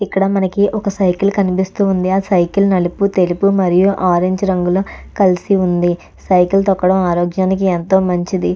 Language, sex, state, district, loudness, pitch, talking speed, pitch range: Telugu, female, Andhra Pradesh, Chittoor, -15 LUFS, 190 Hz, 135 wpm, 180-195 Hz